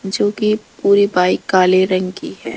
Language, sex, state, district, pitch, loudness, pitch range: Hindi, female, Rajasthan, Jaipur, 190 Hz, -15 LUFS, 185-205 Hz